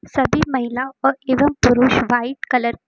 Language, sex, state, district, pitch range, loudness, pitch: Hindi, female, Uttar Pradesh, Lucknow, 245-265 Hz, -18 LUFS, 255 Hz